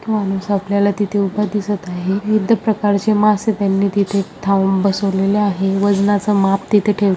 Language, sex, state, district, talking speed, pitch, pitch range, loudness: Marathi, female, Maharashtra, Chandrapur, 150 wpm, 200 Hz, 195-210 Hz, -16 LUFS